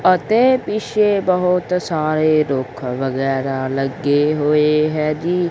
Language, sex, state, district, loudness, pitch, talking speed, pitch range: Punjabi, male, Punjab, Kapurthala, -17 LUFS, 155 Hz, 110 wpm, 135-180 Hz